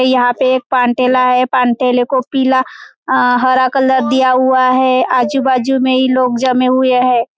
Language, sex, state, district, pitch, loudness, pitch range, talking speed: Hindi, male, Maharashtra, Chandrapur, 255 Hz, -12 LUFS, 250-260 Hz, 180 wpm